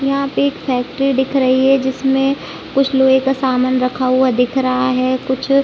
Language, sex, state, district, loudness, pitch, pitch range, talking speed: Hindi, female, Chhattisgarh, Raigarh, -15 LUFS, 265 Hz, 255-270 Hz, 180 wpm